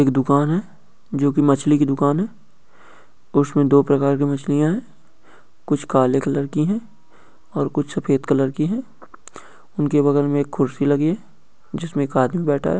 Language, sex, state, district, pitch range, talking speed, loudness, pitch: Hindi, male, Bihar, East Champaran, 140-175 Hz, 190 wpm, -20 LUFS, 145 Hz